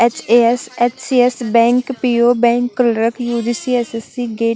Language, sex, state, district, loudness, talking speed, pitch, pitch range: Hindi, female, Chandigarh, Chandigarh, -15 LUFS, 130 wpm, 240 Hz, 235-245 Hz